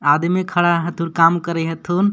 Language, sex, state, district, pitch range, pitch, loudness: Magahi, male, Jharkhand, Palamu, 165-175 Hz, 170 Hz, -18 LUFS